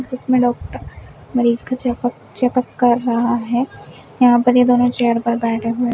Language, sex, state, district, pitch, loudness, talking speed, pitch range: Hindi, female, Uttar Pradesh, Shamli, 245 Hz, -17 LUFS, 170 wpm, 235-250 Hz